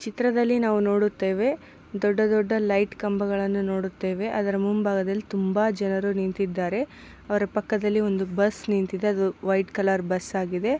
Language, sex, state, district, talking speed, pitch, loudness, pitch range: Kannada, female, Karnataka, Mysore, 130 wpm, 200 Hz, -25 LUFS, 195-215 Hz